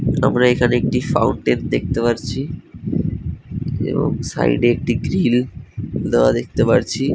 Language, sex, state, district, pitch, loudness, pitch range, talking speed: Bengali, male, West Bengal, North 24 Parganas, 120 Hz, -18 LUFS, 115-130 Hz, 115 wpm